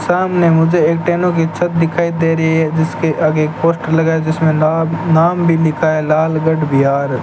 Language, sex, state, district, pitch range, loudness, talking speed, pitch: Hindi, male, Rajasthan, Bikaner, 155-165 Hz, -14 LUFS, 200 wpm, 160 Hz